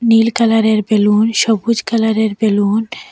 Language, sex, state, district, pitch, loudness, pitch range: Bengali, female, Assam, Hailakandi, 220 Hz, -14 LUFS, 215-225 Hz